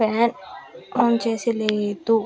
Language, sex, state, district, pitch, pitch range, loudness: Telugu, female, Andhra Pradesh, Manyam, 225 Hz, 215-235 Hz, -22 LUFS